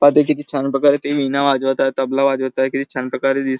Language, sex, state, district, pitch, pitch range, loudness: Marathi, male, Maharashtra, Chandrapur, 135 Hz, 135-140 Hz, -18 LUFS